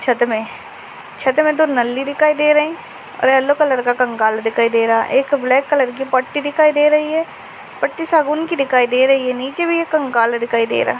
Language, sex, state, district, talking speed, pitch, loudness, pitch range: Hindi, female, Chhattisgarh, Raigarh, 225 wpm, 270 Hz, -16 LUFS, 245-300 Hz